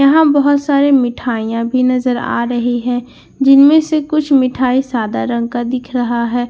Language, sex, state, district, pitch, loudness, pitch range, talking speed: Hindi, female, Bihar, Katihar, 255 Hz, -14 LUFS, 240-280 Hz, 185 wpm